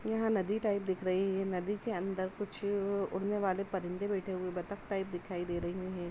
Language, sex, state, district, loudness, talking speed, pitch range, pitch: Hindi, female, Uttar Pradesh, Budaun, -35 LUFS, 205 wpm, 185-205 Hz, 195 Hz